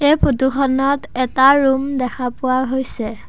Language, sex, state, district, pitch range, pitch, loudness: Assamese, male, Assam, Sonitpur, 255-275 Hz, 265 Hz, -17 LUFS